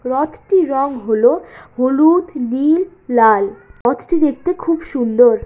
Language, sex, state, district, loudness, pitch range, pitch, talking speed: Bengali, female, West Bengal, Jalpaiguri, -16 LUFS, 245-330 Hz, 275 Hz, 110 wpm